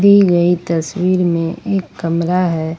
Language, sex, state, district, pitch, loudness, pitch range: Hindi, female, Jharkhand, Ranchi, 175 Hz, -15 LUFS, 165-185 Hz